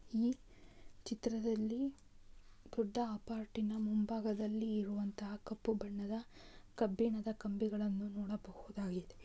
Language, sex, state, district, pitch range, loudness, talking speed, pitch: Kannada, female, Karnataka, Raichur, 210-225 Hz, -40 LUFS, 70 wpm, 215 Hz